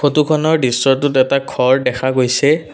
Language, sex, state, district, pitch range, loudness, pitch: Assamese, male, Assam, Kamrup Metropolitan, 130-150 Hz, -14 LUFS, 135 Hz